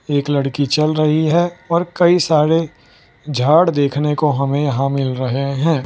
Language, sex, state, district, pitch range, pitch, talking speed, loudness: Hindi, male, Gujarat, Valsad, 140-160 Hz, 150 Hz, 165 wpm, -16 LUFS